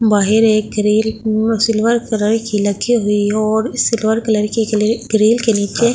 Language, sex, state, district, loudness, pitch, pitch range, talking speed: Hindi, female, Delhi, New Delhi, -15 LUFS, 220 Hz, 210-225 Hz, 190 wpm